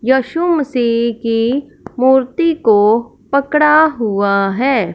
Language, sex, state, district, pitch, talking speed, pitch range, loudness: Hindi, male, Punjab, Fazilka, 250 Hz, 95 wpm, 225-285 Hz, -14 LUFS